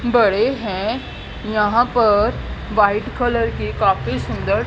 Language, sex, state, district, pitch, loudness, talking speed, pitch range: Hindi, female, Haryana, Jhajjar, 220 Hz, -18 LUFS, 115 wpm, 210-240 Hz